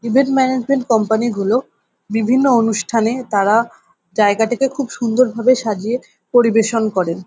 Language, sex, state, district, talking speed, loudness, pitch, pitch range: Bengali, female, West Bengal, North 24 Parganas, 125 wpm, -16 LUFS, 230 Hz, 220-255 Hz